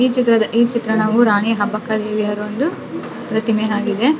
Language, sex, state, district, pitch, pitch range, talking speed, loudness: Kannada, female, Karnataka, Dakshina Kannada, 220 Hz, 215-235 Hz, 170 wpm, -17 LUFS